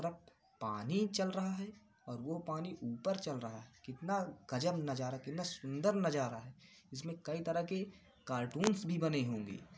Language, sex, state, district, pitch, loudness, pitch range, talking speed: Hindi, male, Uttar Pradesh, Varanasi, 160 Hz, -39 LUFS, 130-190 Hz, 165 wpm